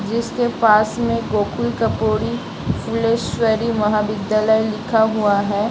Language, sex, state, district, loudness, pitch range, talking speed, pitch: Hindi, female, Bihar, Samastipur, -18 LUFS, 210-230 Hz, 105 wpm, 220 Hz